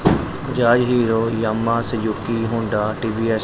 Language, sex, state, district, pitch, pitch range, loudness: Hindi, male, Punjab, Pathankot, 115 Hz, 110-115 Hz, -20 LUFS